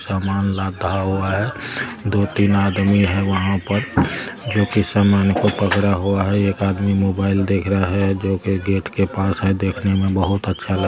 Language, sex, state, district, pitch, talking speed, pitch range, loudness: Maithili, male, Bihar, Samastipur, 100 Hz, 185 wpm, 95-100 Hz, -19 LUFS